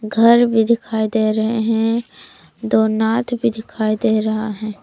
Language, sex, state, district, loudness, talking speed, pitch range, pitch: Hindi, female, Jharkhand, Palamu, -17 LUFS, 160 wpm, 215-230 Hz, 220 Hz